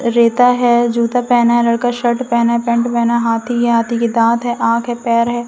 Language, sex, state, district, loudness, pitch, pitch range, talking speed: Hindi, female, Madhya Pradesh, Umaria, -14 LUFS, 235 Hz, 235-240 Hz, 240 wpm